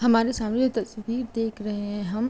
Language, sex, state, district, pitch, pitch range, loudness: Hindi, female, Uttar Pradesh, Etah, 225 Hz, 210-240 Hz, -26 LUFS